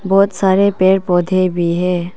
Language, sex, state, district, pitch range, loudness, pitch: Hindi, female, Arunachal Pradesh, Papum Pare, 180-195 Hz, -14 LUFS, 185 Hz